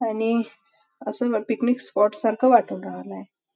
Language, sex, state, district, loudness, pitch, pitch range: Marathi, female, Maharashtra, Nagpur, -23 LUFS, 220 Hz, 205-230 Hz